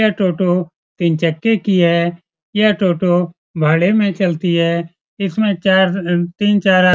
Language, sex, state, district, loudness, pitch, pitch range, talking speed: Hindi, male, Bihar, Supaul, -16 LUFS, 180 Hz, 170-195 Hz, 145 wpm